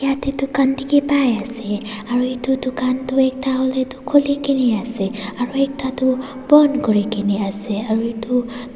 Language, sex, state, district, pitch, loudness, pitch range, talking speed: Nagamese, female, Nagaland, Dimapur, 255 Hz, -19 LUFS, 225-270 Hz, 135 wpm